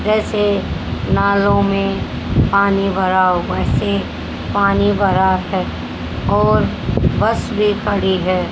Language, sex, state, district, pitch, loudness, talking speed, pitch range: Hindi, female, Haryana, Rohtak, 195 Hz, -16 LUFS, 105 wpm, 185-200 Hz